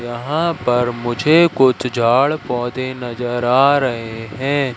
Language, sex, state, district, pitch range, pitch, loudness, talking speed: Hindi, male, Madhya Pradesh, Katni, 120-140 Hz, 125 Hz, -17 LUFS, 125 wpm